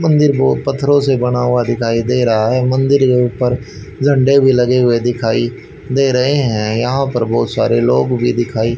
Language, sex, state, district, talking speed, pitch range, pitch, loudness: Hindi, male, Haryana, Rohtak, 190 wpm, 120-135 Hz, 125 Hz, -14 LUFS